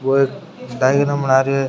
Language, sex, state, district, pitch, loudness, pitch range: Rajasthani, male, Rajasthan, Churu, 135 Hz, -17 LUFS, 130-140 Hz